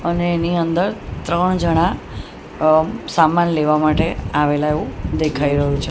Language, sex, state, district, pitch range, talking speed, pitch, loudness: Gujarati, female, Gujarat, Gandhinagar, 150-170 Hz, 150 wpm, 160 Hz, -18 LUFS